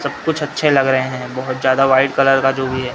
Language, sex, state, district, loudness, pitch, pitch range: Hindi, male, Maharashtra, Mumbai Suburban, -16 LUFS, 135 Hz, 130-140 Hz